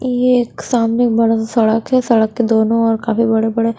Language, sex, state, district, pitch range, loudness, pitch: Hindi, female, Haryana, Charkhi Dadri, 225-240 Hz, -15 LUFS, 230 Hz